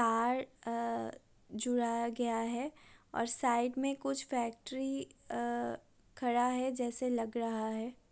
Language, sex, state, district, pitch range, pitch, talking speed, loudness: Hindi, female, Uttar Pradesh, Budaun, 225-255 Hz, 235 Hz, 105 wpm, -36 LUFS